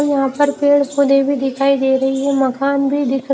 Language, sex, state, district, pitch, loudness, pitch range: Hindi, female, Haryana, Rohtak, 275 Hz, -16 LUFS, 270-280 Hz